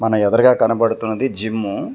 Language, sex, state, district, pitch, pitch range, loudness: Telugu, male, Telangana, Komaram Bheem, 115 Hz, 110-115 Hz, -17 LUFS